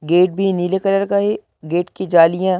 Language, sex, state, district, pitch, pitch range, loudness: Hindi, male, Madhya Pradesh, Bhopal, 185 Hz, 175-195 Hz, -17 LUFS